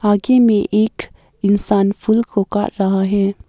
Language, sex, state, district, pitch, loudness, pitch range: Hindi, female, Arunachal Pradesh, Papum Pare, 205 Hz, -16 LUFS, 195-215 Hz